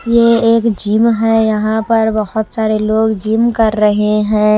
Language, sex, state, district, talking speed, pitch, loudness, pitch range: Hindi, female, Himachal Pradesh, Shimla, 170 wpm, 220 Hz, -13 LUFS, 215-230 Hz